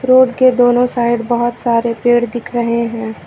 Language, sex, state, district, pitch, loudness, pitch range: Hindi, female, Uttar Pradesh, Lucknow, 240 Hz, -14 LUFS, 235-245 Hz